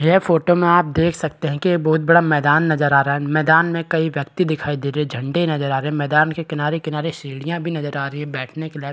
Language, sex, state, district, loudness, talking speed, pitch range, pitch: Hindi, male, Chhattisgarh, Rajnandgaon, -19 LUFS, 270 wpm, 145-165 Hz, 155 Hz